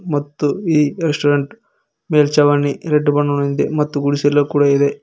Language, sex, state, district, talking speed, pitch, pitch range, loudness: Kannada, male, Karnataka, Koppal, 120 wpm, 145 Hz, 145-150 Hz, -16 LUFS